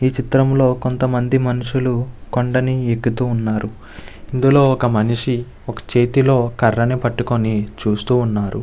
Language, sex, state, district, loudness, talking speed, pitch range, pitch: Telugu, male, Andhra Pradesh, Visakhapatnam, -17 LUFS, 120 wpm, 110-130 Hz, 120 Hz